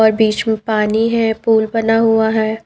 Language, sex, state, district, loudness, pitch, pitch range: Hindi, female, Punjab, Pathankot, -15 LUFS, 220 Hz, 220-225 Hz